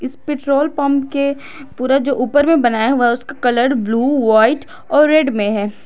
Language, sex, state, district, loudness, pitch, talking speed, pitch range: Hindi, female, Jharkhand, Garhwa, -15 LUFS, 270 Hz, 195 wpm, 240-285 Hz